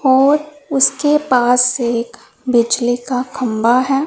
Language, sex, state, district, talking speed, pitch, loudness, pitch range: Hindi, female, Punjab, Pathankot, 120 wpm, 255 Hz, -15 LUFS, 240-275 Hz